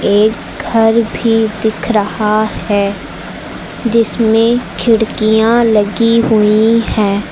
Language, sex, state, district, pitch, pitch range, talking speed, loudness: Hindi, female, Uttar Pradesh, Lucknow, 220 Hz, 210-230 Hz, 90 wpm, -12 LUFS